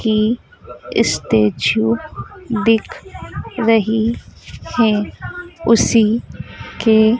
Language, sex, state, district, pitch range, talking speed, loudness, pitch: Hindi, female, Madhya Pradesh, Dhar, 220-230 Hz, 60 wpm, -16 LUFS, 225 Hz